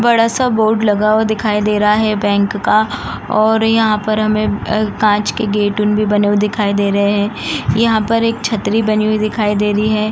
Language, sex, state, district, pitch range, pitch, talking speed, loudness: Hindi, female, Uttar Pradesh, Jalaun, 210-220 Hz, 215 Hz, 200 wpm, -14 LUFS